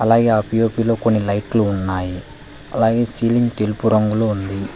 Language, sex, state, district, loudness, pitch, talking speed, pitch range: Telugu, male, Telangana, Hyderabad, -18 LUFS, 110 Hz, 150 wpm, 100-115 Hz